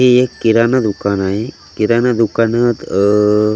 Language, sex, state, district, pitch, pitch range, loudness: Marathi, male, Maharashtra, Gondia, 115 Hz, 105-120 Hz, -14 LUFS